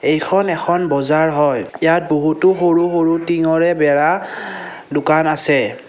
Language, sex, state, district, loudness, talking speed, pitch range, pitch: Assamese, male, Assam, Kamrup Metropolitan, -15 LUFS, 120 wpm, 155-170 Hz, 160 Hz